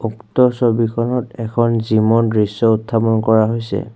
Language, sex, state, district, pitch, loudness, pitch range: Assamese, male, Assam, Kamrup Metropolitan, 115 Hz, -16 LUFS, 110-115 Hz